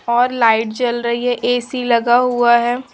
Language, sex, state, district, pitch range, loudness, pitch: Hindi, female, Chhattisgarh, Raipur, 235-245 Hz, -16 LUFS, 240 Hz